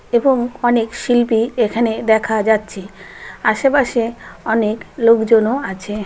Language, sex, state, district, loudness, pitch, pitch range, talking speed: Bengali, female, West Bengal, Malda, -16 LUFS, 225 Hz, 215-240 Hz, 120 wpm